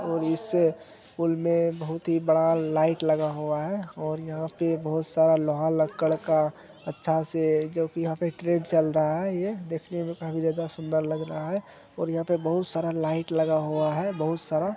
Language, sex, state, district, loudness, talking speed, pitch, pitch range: Hindi, male, Bihar, Araria, -26 LUFS, 195 wpm, 160 Hz, 155-165 Hz